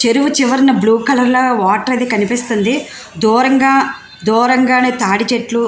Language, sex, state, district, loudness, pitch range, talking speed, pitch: Telugu, female, Andhra Pradesh, Visakhapatnam, -13 LUFS, 225-260 Hz, 125 wpm, 245 Hz